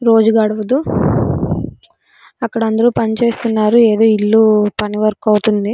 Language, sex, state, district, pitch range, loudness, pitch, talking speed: Telugu, female, Andhra Pradesh, Srikakulam, 215-230 Hz, -14 LUFS, 220 Hz, 105 wpm